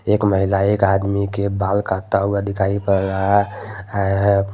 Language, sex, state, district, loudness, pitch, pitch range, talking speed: Hindi, male, Jharkhand, Deoghar, -19 LUFS, 100 Hz, 95-100 Hz, 170 wpm